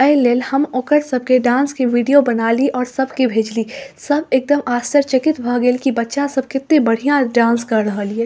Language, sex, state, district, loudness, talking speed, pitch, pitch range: Maithili, female, Bihar, Saharsa, -16 LUFS, 195 wpm, 255 Hz, 240-275 Hz